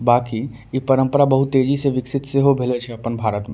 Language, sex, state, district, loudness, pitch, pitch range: Angika, male, Bihar, Bhagalpur, -19 LUFS, 130 Hz, 120-135 Hz